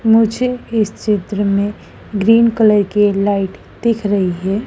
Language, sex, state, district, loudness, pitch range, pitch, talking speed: Hindi, female, Madhya Pradesh, Dhar, -15 LUFS, 200-225 Hz, 210 Hz, 140 wpm